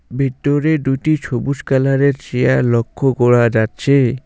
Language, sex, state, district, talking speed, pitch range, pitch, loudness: Bengali, male, West Bengal, Alipurduar, 125 wpm, 120-140 Hz, 135 Hz, -16 LUFS